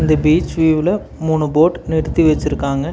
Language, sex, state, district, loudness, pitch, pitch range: Tamil, male, Tamil Nadu, Namakkal, -16 LUFS, 160 Hz, 155-165 Hz